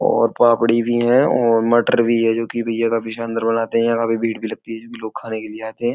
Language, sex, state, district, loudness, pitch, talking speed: Hindi, male, Uttar Pradesh, Etah, -18 LUFS, 115 Hz, 260 wpm